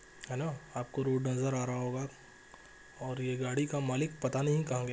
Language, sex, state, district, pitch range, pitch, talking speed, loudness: Hindi, male, Jharkhand, Jamtara, 125-140 Hz, 130 Hz, 205 wpm, -35 LUFS